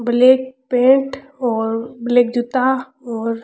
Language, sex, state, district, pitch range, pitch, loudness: Rajasthani, female, Rajasthan, Churu, 240-260 Hz, 250 Hz, -17 LUFS